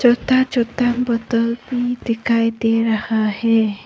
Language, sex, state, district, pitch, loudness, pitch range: Hindi, female, Arunachal Pradesh, Papum Pare, 230 Hz, -18 LUFS, 225-245 Hz